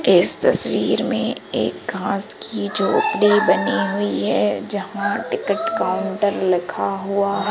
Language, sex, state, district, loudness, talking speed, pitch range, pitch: Hindi, female, Madhya Pradesh, Umaria, -19 LUFS, 120 wpm, 200-215 Hz, 200 Hz